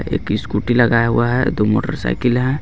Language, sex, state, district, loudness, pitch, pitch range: Hindi, male, Jharkhand, Garhwa, -17 LUFS, 120 Hz, 115-125 Hz